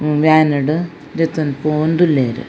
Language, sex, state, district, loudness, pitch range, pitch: Tulu, female, Karnataka, Dakshina Kannada, -16 LUFS, 145-160 Hz, 150 Hz